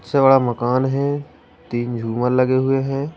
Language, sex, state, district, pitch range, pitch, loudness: Hindi, male, Madhya Pradesh, Katni, 120-135 Hz, 130 Hz, -19 LUFS